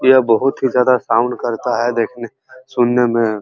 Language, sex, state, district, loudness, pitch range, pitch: Hindi, male, Uttar Pradesh, Muzaffarnagar, -16 LUFS, 115-130 Hz, 120 Hz